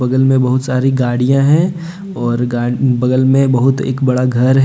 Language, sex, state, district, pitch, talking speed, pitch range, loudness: Hindi, male, Jharkhand, Deoghar, 130 Hz, 180 wpm, 125-135 Hz, -13 LUFS